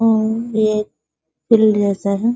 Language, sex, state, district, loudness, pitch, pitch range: Hindi, female, Bihar, Sitamarhi, -17 LUFS, 215 Hz, 200-225 Hz